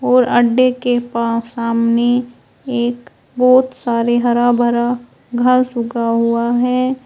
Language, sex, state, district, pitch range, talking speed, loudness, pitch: Hindi, female, Uttar Pradesh, Shamli, 235-250 Hz, 120 wpm, -15 LUFS, 240 Hz